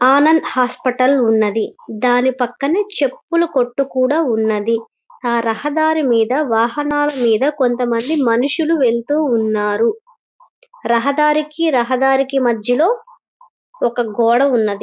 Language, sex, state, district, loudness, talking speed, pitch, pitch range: Telugu, female, Andhra Pradesh, Guntur, -16 LUFS, 100 wpm, 255 Hz, 235-300 Hz